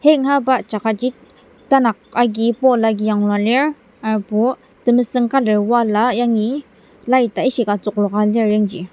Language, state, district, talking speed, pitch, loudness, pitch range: Ao, Nagaland, Dimapur, 135 wpm, 235 Hz, -17 LUFS, 215-255 Hz